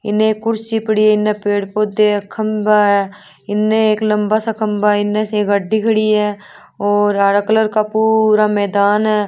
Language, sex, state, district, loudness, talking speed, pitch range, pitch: Marwari, female, Rajasthan, Churu, -15 LUFS, 180 wpm, 205-215 Hz, 210 Hz